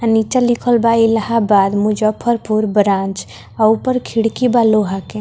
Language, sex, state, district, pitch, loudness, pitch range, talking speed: Bhojpuri, female, Bihar, Muzaffarpur, 220 Hz, -15 LUFS, 210-235 Hz, 150 wpm